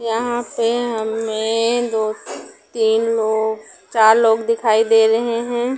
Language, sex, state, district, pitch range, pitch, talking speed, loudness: Hindi, female, Punjab, Pathankot, 220-235 Hz, 225 Hz, 135 wpm, -17 LUFS